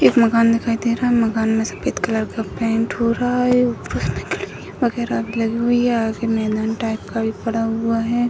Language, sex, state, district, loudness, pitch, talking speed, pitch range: Hindi, female, Bihar, Sitamarhi, -20 LUFS, 230 Hz, 195 wpm, 225-235 Hz